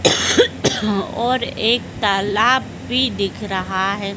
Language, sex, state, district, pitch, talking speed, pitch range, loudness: Hindi, female, Madhya Pradesh, Dhar, 205 Hz, 100 wpm, 195-240 Hz, -18 LUFS